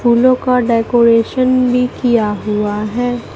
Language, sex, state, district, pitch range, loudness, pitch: Hindi, female, Bihar, Katihar, 225-250 Hz, -14 LUFS, 240 Hz